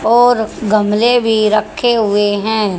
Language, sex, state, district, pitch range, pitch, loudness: Hindi, female, Haryana, Jhajjar, 210-235 Hz, 215 Hz, -13 LUFS